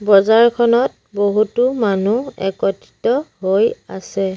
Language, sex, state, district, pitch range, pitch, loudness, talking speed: Assamese, female, Assam, Sonitpur, 195-235 Hz, 210 Hz, -17 LUFS, 80 wpm